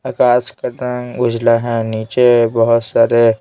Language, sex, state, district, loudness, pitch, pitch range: Hindi, male, Bihar, Patna, -14 LUFS, 115 Hz, 115-125 Hz